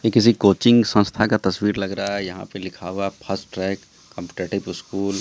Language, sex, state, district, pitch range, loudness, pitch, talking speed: Hindi, male, Bihar, Katihar, 95-105 Hz, -21 LUFS, 100 Hz, 220 wpm